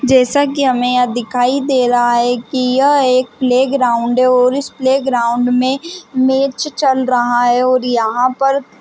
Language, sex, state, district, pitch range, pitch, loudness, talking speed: Hindi, female, Chhattisgarh, Balrampur, 245-270 Hz, 255 Hz, -14 LUFS, 170 wpm